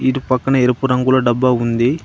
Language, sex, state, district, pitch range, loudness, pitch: Telugu, male, Telangana, Adilabad, 125-130 Hz, -15 LUFS, 130 Hz